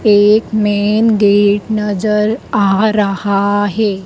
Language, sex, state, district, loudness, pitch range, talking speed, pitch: Hindi, female, Madhya Pradesh, Dhar, -13 LUFS, 205-215 Hz, 105 wpm, 205 Hz